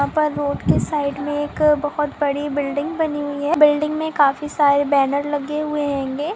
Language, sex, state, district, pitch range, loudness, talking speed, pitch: Hindi, female, Andhra Pradesh, Krishna, 285-300 Hz, -20 LUFS, 190 wpm, 290 Hz